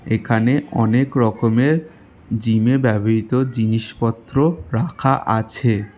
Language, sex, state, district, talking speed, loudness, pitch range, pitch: Bengali, male, West Bengal, Alipurduar, 80 wpm, -18 LUFS, 110-135 Hz, 115 Hz